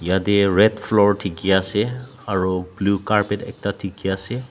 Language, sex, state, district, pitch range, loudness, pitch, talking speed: Nagamese, male, Nagaland, Dimapur, 95-105 Hz, -20 LUFS, 100 Hz, 145 wpm